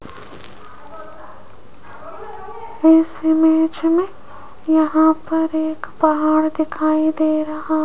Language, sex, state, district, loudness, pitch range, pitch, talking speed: Hindi, female, Rajasthan, Jaipur, -17 LUFS, 310-320 Hz, 315 Hz, 85 wpm